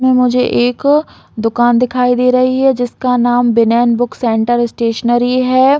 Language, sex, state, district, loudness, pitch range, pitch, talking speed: Hindi, female, Chhattisgarh, Raigarh, -13 LUFS, 240-255 Hz, 245 Hz, 155 wpm